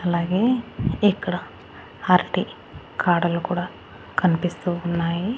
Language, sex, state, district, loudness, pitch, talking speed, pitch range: Telugu, female, Andhra Pradesh, Annamaya, -23 LUFS, 180 Hz, 80 wpm, 175-185 Hz